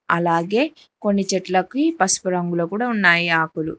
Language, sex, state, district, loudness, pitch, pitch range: Telugu, female, Telangana, Hyderabad, -19 LUFS, 185 Hz, 170-210 Hz